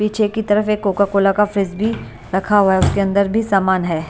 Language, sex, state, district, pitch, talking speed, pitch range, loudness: Hindi, female, Bihar, Katihar, 200 Hz, 250 wpm, 195-210 Hz, -17 LUFS